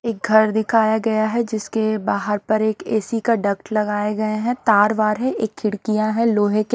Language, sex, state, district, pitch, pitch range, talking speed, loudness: Hindi, male, Odisha, Nuapada, 215 Hz, 215-225 Hz, 205 wpm, -19 LUFS